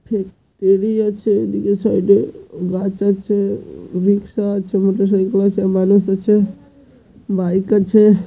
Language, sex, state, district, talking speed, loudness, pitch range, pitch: Bengali, male, West Bengal, Dakshin Dinajpur, 125 wpm, -17 LUFS, 195-210 Hz, 200 Hz